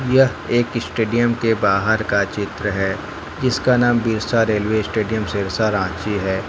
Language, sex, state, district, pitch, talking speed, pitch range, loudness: Hindi, male, Jharkhand, Ranchi, 110 Hz, 150 wpm, 100-115 Hz, -19 LUFS